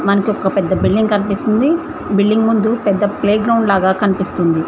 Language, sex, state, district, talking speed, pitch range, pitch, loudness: Telugu, female, Telangana, Mahabubabad, 140 wpm, 195-220 Hz, 205 Hz, -15 LUFS